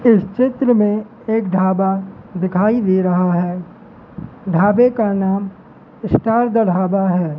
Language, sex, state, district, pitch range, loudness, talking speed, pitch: Hindi, male, Madhya Pradesh, Katni, 185-225 Hz, -16 LUFS, 130 wpm, 195 Hz